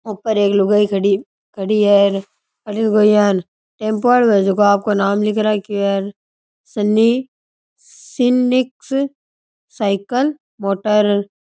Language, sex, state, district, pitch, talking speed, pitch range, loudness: Rajasthani, male, Rajasthan, Churu, 210 Hz, 125 wpm, 200-225 Hz, -16 LUFS